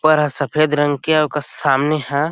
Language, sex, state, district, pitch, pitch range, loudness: Chhattisgarhi, male, Chhattisgarh, Sarguja, 150 Hz, 145-155 Hz, -17 LUFS